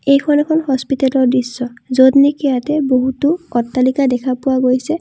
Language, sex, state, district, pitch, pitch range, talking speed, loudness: Assamese, female, Assam, Kamrup Metropolitan, 265 Hz, 255-280 Hz, 145 wpm, -15 LUFS